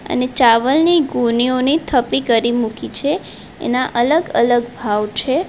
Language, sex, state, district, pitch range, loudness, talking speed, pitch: Gujarati, female, Gujarat, Valsad, 235-285 Hz, -16 LUFS, 130 wpm, 250 Hz